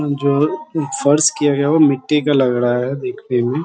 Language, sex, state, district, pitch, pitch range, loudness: Hindi, male, Bihar, Sitamarhi, 145 Hz, 135-150 Hz, -16 LUFS